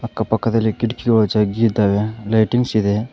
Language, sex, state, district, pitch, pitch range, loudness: Kannada, male, Karnataka, Koppal, 110 Hz, 105-115 Hz, -18 LUFS